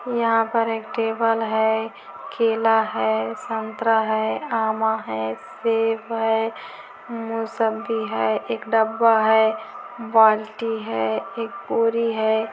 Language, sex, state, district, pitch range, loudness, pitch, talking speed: Hindi, female, Chhattisgarh, Korba, 220-230 Hz, -22 LUFS, 225 Hz, 105 wpm